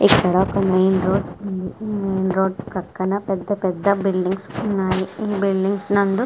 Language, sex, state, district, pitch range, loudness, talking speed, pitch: Telugu, female, Andhra Pradesh, Guntur, 185-200 Hz, -21 LUFS, 125 wpm, 190 Hz